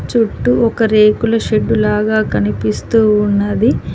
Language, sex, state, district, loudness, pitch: Telugu, female, Telangana, Mahabubabad, -14 LUFS, 205 Hz